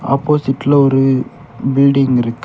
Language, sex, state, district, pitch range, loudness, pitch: Tamil, male, Tamil Nadu, Kanyakumari, 135-140 Hz, -14 LUFS, 135 Hz